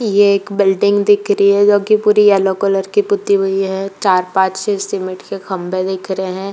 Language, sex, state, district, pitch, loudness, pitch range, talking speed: Hindi, female, Uttar Pradesh, Jalaun, 195 Hz, -14 LUFS, 190-205 Hz, 220 wpm